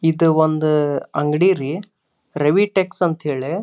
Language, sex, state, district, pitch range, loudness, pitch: Kannada, male, Karnataka, Dharwad, 150-185 Hz, -18 LUFS, 160 Hz